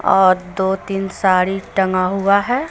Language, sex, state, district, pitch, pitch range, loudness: Hindi, female, Jharkhand, Deoghar, 195 Hz, 185-195 Hz, -17 LUFS